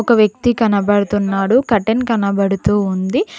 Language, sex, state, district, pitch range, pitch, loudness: Telugu, female, Telangana, Mahabubabad, 200-230 Hz, 205 Hz, -15 LUFS